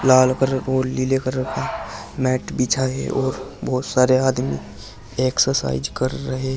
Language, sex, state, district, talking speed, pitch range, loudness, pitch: Hindi, male, Uttar Pradesh, Saharanpur, 155 wpm, 125-130 Hz, -21 LUFS, 130 Hz